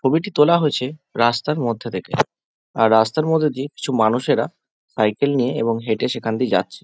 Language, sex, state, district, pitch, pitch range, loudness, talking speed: Bengali, male, West Bengal, Jhargram, 130 Hz, 115-150 Hz, -20 LUFS, 165 wpm